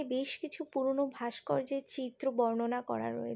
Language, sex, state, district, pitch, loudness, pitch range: Bengali, female, West Bengal, Jhargram, 260 Hz, -35 LUFS, 235-275 Hz